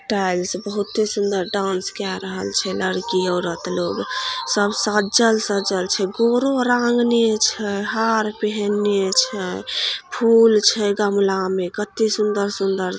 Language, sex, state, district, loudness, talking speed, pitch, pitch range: Maithili, female, Bihar, Samastipur, -20 LUFS, 120 wpm, 205 Hz, 190-220 Hz